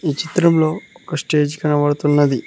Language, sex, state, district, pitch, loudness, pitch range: Telugu, male, Telangana, Mahabubabad, 150 Hz, -17 LUFS, 145-165 Hz